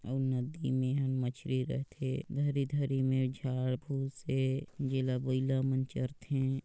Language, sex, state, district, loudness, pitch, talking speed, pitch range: Chhattisgarhi, male, Chhattisgarh, Sarguja, -34 LUFS, 130 Hz, 115 wpm, 130-135 Hz